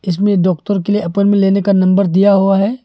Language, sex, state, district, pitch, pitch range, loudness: Hindi, male, Arunachal Pradesh, Longding, 195 Hz, 190-200 Hz, -13 LUFS